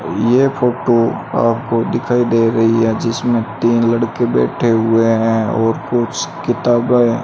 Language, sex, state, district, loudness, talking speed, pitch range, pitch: Hindi, male, Rajasthan, Bikaner, -15 LUFS, 140 wpm, 115-120 Hz, 115 Hz